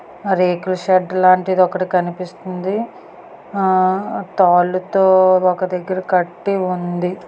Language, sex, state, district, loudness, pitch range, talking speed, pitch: Telugu, female, Andhra Pradesh, Srikakulam, -17 LUFS, 180-190 Hz, 80 wpm, 185 Hz